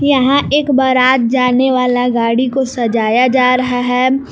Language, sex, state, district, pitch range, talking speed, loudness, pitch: Hindi, female, Jharkhand, Palamu, 245-265 Hz, 155 wpm, -13 LUFS, 255 Hz